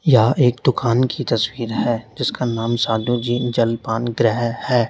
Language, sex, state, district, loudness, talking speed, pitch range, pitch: Hindi, male, Uttar Pradesh, Lalitpur, -19 LUFS, 160 wpm, 115-125 Hz, 120 Hz